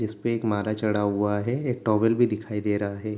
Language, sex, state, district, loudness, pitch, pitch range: Hindi, male, Bihar, Darbhanga, -25 LUFS, 110 Hz, 105-115 Hz